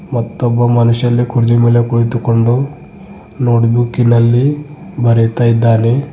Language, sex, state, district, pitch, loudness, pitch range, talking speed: Kannada, male, Karnataka, Bidar, 120 Hz, -12 LUFS, 115-125 Hz, 100 wpm